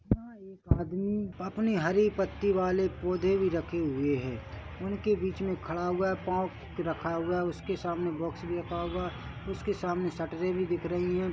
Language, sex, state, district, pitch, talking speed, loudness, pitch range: Hindi, male, Chhattisgarh, Bilaspur, 180 Hz, 190 wpm, -31 LUFS, 170-190 Hz